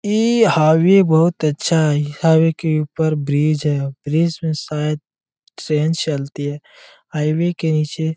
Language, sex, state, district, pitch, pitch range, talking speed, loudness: Hindi, male, Jharkhand, Jamtara, 155 Hz, 150-165 Hz, 155 wpm, -17 LUFS